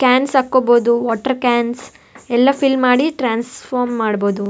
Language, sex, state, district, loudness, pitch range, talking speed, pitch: Kannada, female, Karnataka, Bellary, -16 LUFS, 235-265 Hz, 120 wpm, 250 Hz